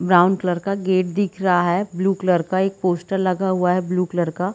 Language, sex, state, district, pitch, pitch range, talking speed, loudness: Hindi, female, Chhattisgarh, Bilaspur, 185 Hz, 180-190 Hz, 240 wpm, -20 LUFS